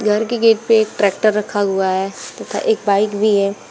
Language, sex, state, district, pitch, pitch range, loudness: Hindi, female, Uttar Pradesh, Shamli, 210 Hz, 200-215 Hz, -16 LUFS